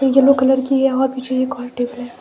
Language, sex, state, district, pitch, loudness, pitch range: Hindi, female, Himachal Pradesh, Shimla, 260 Hz, -17 LUFS, 250-270 Hz